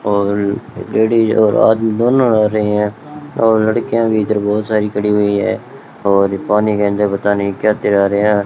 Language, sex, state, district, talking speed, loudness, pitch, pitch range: Hindi, male, Rajasthan, Bikaner, 200 wpm, -14 LUFS, 105 Hz, 100-110 Hz